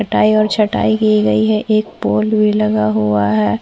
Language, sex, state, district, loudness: Hindi, female, Chhattisgarh, Korba, -14 LUFS